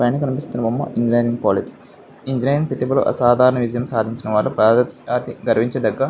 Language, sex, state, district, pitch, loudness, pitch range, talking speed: Telugu, male, Andhra Pradesh, Visakhapatnam, 120 Hz, -19 LUFS, 120-130 Hz, 140 wpm